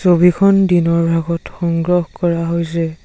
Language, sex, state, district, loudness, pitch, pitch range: Assamese, male, Assam, Sonitpur, -15 LUFS, 170 Hz, 165-180 Hz